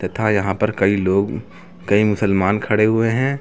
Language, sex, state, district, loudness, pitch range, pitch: Hindi, male, Uttar Pradesh, Lucknow, -18 LUFS, 100-110 Hz, 105 Hz